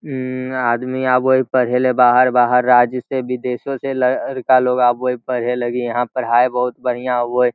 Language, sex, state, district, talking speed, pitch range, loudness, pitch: Hindi, male, Bihar, Lakhisarai, 160 wpm, 125-130 Hz, -17 LUFS, 125 Hz